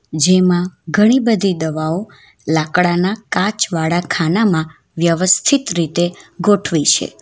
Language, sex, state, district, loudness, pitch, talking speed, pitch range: Gujarati, female, Gujarat, Valsad, -15 LUFS, 175 Hz, 90 wpm, 160-200 Hz